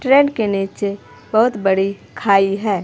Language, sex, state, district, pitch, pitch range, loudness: Hindi, female, Himachal Pradesh, Shimla, 200 Hz, 195-225 Hz, -17 LUFS